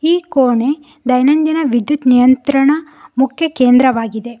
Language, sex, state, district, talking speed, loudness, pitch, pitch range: Kannada, female, Karnataka, Koppal, 95 wpm, -13 LUFS, 270 Hz, 250-300 Hz